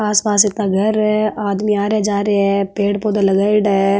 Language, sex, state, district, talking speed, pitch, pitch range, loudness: Marwari, female, Rajasthan, Nagaur, 225 wpm, 205 Hz, 200-210 Hz, -16 LUFS